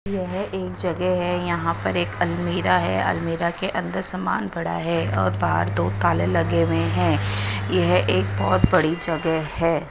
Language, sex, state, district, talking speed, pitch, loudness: Hindi, female, Odisha, Nuapada, 165 wpm, 100 Hz, -22 LUFS